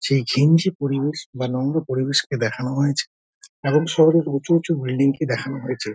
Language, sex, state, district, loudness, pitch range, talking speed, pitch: Bengali, male, West Bengal, Dakshin Dinajpur, -21 LUFS, 130-160 Hz, 150 wpm, 140 Hz